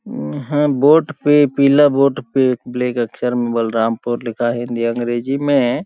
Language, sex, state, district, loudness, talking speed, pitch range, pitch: Hindi, male, Chhattisgarh, Balrampur, -16 LUFS, 175 wpm, 120-145 Hz, 125 Hz